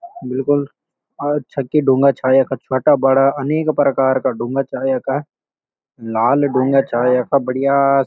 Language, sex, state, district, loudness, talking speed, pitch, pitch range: Garhwali, male, Uttarakhand, Uttarkashi, -16 LUFS, 135 wpm, 135 Hz, 130-145 Hz